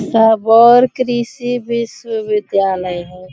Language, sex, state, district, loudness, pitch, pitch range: Hindi, female, Bihar, Bhagalpur, -14 LUFS, 225 Hz, 200-240 Hz